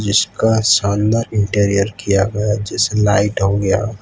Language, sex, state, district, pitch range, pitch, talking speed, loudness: Hindi, male, Gujarat, Valsad, 100-110 Hz, 105 Hz, 150 wpm, -16 LUFS